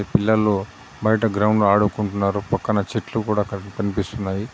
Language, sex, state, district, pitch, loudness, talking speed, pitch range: Telugu, male, Telangana, Adilabad, 105 Hz, -21 LUFS, 105 wpm, 100-110 Hz